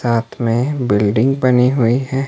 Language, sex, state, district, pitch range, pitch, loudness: Hindi, male, Himachal Pradesh, Shimla, 115-130 Hz, 125 Hz, -15 LUFS